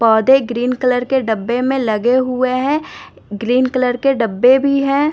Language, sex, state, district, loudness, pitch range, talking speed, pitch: Hindi, female, Bihar, Patna, -15 LUFS, 240-265 Hz, 175 wpm, 255 Hz